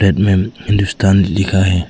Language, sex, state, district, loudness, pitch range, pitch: Hindi, male, Arunachal Pradesh, Papum Pare, -14 LUFS, 95-100 Hz, 95 Hz